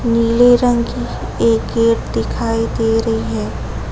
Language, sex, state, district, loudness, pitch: Hindi, female, Chhattisgarh, Raipur, -16 LUFS, 225 Hz